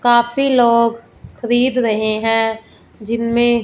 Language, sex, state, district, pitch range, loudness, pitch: Hindi, female, Punjab, Fazilka, 225-240 Hz, -16 LUFS, 235 Hz